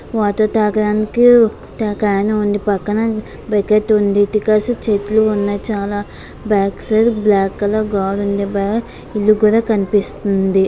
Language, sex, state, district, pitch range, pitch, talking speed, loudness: Telugu, female, Andhra Pradesh, Visakhapatnam, 205-215 Hz, 210 Hz, 55 wpm, -16 LUFS